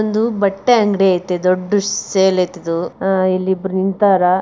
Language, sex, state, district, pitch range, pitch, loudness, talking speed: Kannada, female, Karnataka, Bijapur, 185-205 Hz, 190 Hz, -16 LUFS, 135 wpm